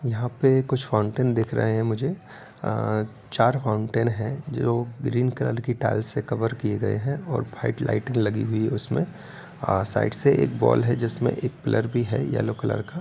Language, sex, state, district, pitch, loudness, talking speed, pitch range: Hindi, male, Bihar, Gopalganj, 120 Hz, -25 LUFS, 195 wpm, 110-130 Hz